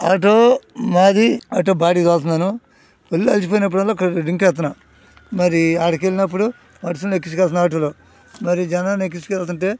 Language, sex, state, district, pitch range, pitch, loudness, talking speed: Telugu, male, Andhra Pradesh, Guntur, 175-205 Hz, 185 Hz, -17 LUFS, 60 wpm